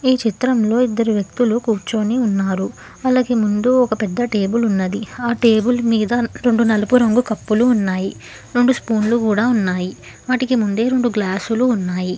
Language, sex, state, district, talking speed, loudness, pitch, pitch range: Telugu, female, Telangana, Hyderabad, 145 wpm, -17 LUFS, 230 Hz, 210-245 Hz